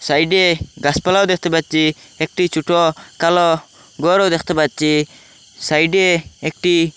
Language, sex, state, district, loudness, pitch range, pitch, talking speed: Bengali, male, Assam, Hailakandi, -16 LUFS, 155-175 Hz, 165 Hz, 105 wpm